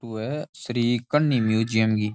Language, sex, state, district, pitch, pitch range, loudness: Rajasthani, male, Rajasthan, Churu, 115 Hz, 110-130 Hz, -24 LUFS